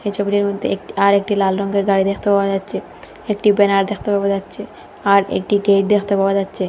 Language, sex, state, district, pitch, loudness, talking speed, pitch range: Bengali, female, Assam, Hailakandi, 200 Hz, -17 LUFS, 180 wpm, 195-205 Hz